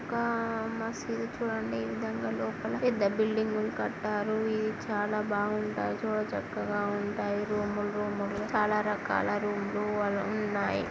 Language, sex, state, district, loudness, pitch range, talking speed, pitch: Telugu, male, Andhra Pradesh, Guntur, -31 LUFS, 205-220 Hz, 125 wpm, 210 Hz